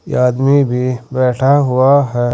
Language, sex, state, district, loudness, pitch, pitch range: Hindi, male, Uttar Pradesh, Saharanpur, -13 LUFS, 130 Hz, 125-140 Hz